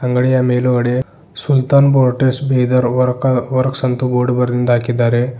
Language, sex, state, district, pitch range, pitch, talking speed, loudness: Kannada, male, Karnataka, Bidar, 125-130 Hz, 125 Hz, 120 wpm, -15 LUFS